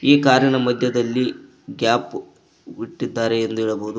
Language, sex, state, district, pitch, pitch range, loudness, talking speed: Kannada, male, Karnataka, Koppal, 120 Hz, 115-130 Hz, -19 LUFS, 105 wpm